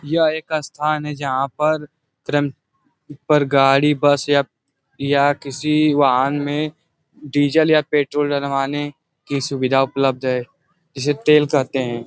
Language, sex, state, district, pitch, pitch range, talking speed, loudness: Hindi, male, Uttar Pradesh, Ghazipur, 145 Hz, 135-150 Hz, 130 wpm, -18 LUFS